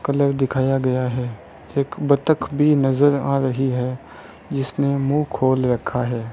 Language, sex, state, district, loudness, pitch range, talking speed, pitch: Hindi, male, Rajasthan, Bikaner, -20 LUFS, 130-140 Hz, 150 wpm, 135 Hz